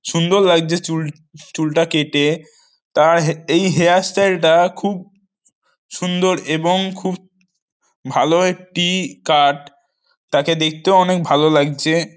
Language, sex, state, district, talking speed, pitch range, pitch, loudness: Bengali, male, West Bengal, North 24 Parganas, 115 wpm, 160-185 Hz, 175 Hz, -16 LUFS